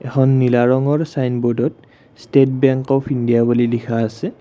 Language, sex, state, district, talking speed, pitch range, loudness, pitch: Assamese, male, Assam, Kamrup Metropolitan, 150 wpm, 120-135 Hz, -17 LUFS, 130 Hz